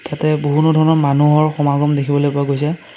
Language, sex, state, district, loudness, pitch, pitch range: Assamese, male, Assam, Sonitpur, -15 LUFS, 150 Hz, 145-155 Hz